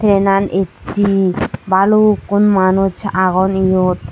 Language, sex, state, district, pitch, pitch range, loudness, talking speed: Chakma, female, Tripura, Unakoti, 195 Hz, 185-200 Hz, -14 LUFS, 85 wpm